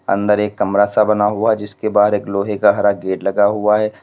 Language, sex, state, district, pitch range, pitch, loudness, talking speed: Hindi, male, Uttar Pradesh, Lalitpur, 100-105 Hz, 105 Hz, -16 LUFS, 240 wpm